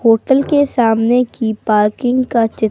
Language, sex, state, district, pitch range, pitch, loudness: Hindi, female, Himachal Pradesh, Shimla, 220-255 Hz, 230 Hz, -14 LUFS